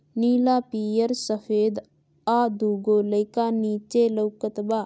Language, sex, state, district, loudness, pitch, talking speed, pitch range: Bhojpuri, female, Bihar, Gopalganj, -24 LUFS, 215 Hz, 110 wpm, 210-235 Hz